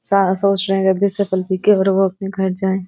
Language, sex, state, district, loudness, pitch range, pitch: Hindi, female, Uttar Pradesh, Varanasi, -17 LUFS, 190-195 Hz, 195 Hz